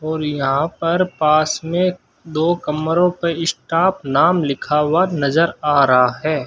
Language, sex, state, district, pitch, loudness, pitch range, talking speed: Hindi, male, Rajasthan, Bikaner, 160 Hz, -17 LUFS, 150-170 Hz, 150 wpm